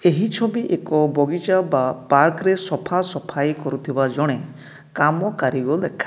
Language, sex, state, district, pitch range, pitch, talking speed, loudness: Odia, male, Odisha, Nuapada, 140-180 Hz, 150 Hz, 150 wpm, -20 LUFS